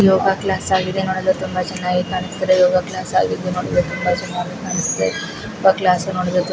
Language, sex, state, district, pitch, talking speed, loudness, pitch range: Kannada, female, Karnataka, Mysore, 185 Hz, 145 wpm, -19 LUFS, 180-190 Hz